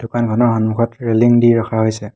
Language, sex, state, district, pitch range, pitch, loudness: Assamese, male, Assam, Hailakandi, 110-120 Hz, 115 Hz, -15 LUFS